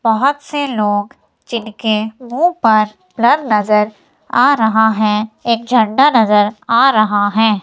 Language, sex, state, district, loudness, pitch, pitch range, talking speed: Hindi, female, Himachal Pradesh, Shimla, -14 LUFS, 220 Hz, 215-245 Hz, 135 wpm